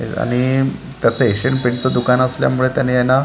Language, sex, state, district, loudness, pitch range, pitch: Marathi, male, Maharashtra, Gondia, -16 LUFS, 125-130 Hz, 130 Hz